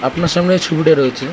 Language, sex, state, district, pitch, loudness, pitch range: Bengali, female, West Bengal, North 24 Parganas, 160 Hz, -14 LUFS, 130-175 Hz